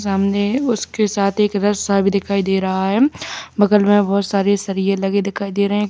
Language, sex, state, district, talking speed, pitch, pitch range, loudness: Hindi, male, Uttar Pradesh, Lalitpur, 195 wpm, 200 Hz, 195-205 Hz, -17 LUFS